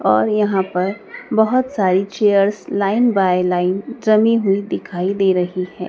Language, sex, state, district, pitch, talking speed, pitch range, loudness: Hindi, female, Madhya Pradesh, Dhar, 195 Hz, 155 wpm, 185-215 Hz, -17 LUFS